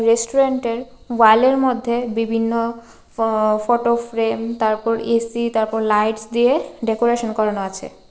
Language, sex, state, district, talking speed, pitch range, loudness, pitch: Bengali, female, Tripura, West Tripura, 110 wpm, 225-235 Hz, -19 LUFS, 230 Hz